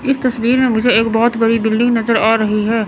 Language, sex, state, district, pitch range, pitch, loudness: Hindi, female, Chandigarh, Chandigarh, 225-245 Hz, 230 Hz, -14 LUFS